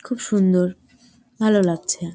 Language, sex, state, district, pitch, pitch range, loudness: Bengali, female, West Bengal, Jalpaiguri, 200 Hz, 180-235 Hz, -20 LUFS